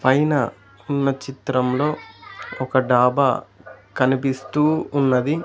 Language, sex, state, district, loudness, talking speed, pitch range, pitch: Telugu, male, Andhra Pradesh, Sri Satya Sai, -20 LUFS, 75 wpm, 130-145 Hz, 135 Hz